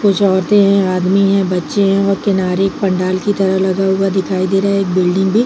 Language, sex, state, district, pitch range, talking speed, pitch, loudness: Hindi, female, Chhattisgarh, Bilaspur, 185-195 Hz, 240 wpm, 195 Hz, -14 LUFS